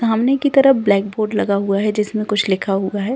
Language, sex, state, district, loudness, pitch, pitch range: Hindi, female, Uttarakhand, Uttarkashi, -17 LUFS, 210 Hz, 200-230 Hz